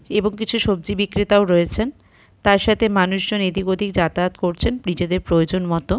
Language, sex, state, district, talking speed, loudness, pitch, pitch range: Bengali, female, West Bengal, Purulia, 160 wpm, -19 LUFS, 195 Hz, 180-210 Hz